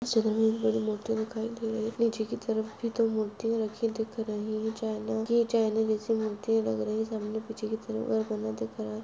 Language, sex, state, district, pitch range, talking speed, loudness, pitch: Hindi, male, Uttar Pradesh, Budaun, 215-225 Hz, 215 wpm, -30 LUFS, 220 Hz